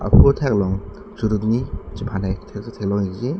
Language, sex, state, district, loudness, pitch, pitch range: Karbi, male, Assam, Karbi Anglong, -21 LUFS, 105 Hz, 95-115 Hz